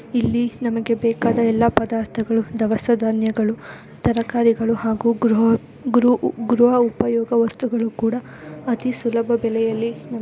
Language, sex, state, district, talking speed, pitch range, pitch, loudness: Kannada, female, Karnataka, Dakshina Kannada, 110 wpm, 225-235 Hz, 230 Hz, -20 LUFS